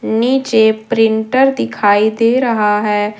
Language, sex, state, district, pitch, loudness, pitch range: Hindi, female, Jharkhand, Deoghar, 220 Hz, -13 LUFS, 210-235 Hz